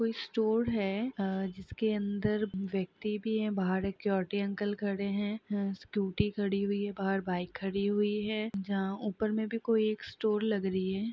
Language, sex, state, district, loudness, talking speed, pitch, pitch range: Hindi, female, Chhattisgarh, Raigarh, -33 LUFS, 165 wpm, 205 Hz, 195-215 Hz